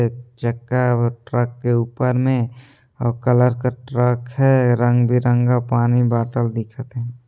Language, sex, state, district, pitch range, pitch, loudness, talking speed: Chhattisgarhi, male, Chhattisgarh, Sarguja, 120-125 Hz, 120 Hz, -19 LUFS, 150 wpm